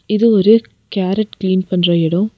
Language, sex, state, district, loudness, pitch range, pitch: Tamil, female, Tamil Nadu, Nilgiris, -15 LUFS, 185-215 Hz, 195 Hz